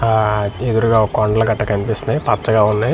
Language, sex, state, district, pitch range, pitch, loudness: Telugu, male, Andhra Pradesh, Manyam, 105-115 Hz, 110 Hz, -16 LUFS